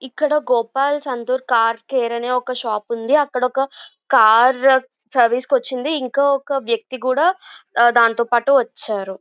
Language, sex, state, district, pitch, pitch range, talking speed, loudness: Telugu, female, Andhra Pradesh, Visakhapatnam, 255 Hz, 235-275 Hz, 125 wpm, -18 LUFS